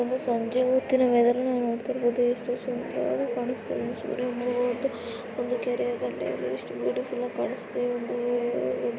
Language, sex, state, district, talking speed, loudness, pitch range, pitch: Kannada, female, Karnataka, Dharwad, 140 wpm, -28 LUFS, 235-245 Hz, 245 Hz